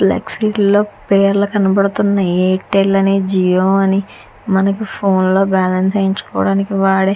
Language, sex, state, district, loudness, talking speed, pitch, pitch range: Telugu, female, Andhra Pradesh, Chittoor, -14 LUFS, 135 wpm, 195 Hz, 190-200 Hz